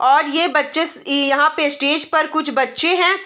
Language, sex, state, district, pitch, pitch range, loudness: Hindi, female, Bihar, Saharsa, 310 Hz, 290-330 Hz, -17 LUFS